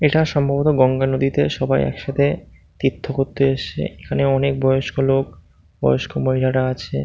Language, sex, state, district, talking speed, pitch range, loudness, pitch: Bengali, male, West Bengal, Malda, 135 wpm, 85-140 Hz, -19 LUFS, 135 Hz